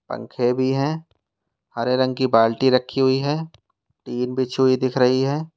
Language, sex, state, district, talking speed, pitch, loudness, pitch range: Hindi, male, Uttar Pradesh, Lalitpur, 170 wpm, 130 Hz, -20 LUFS, 125-135 Hz